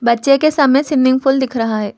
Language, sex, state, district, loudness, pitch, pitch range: Hindi, female, Telangana, Hyderabad, -14 LUFS, 265 Hz, 235-275 Hz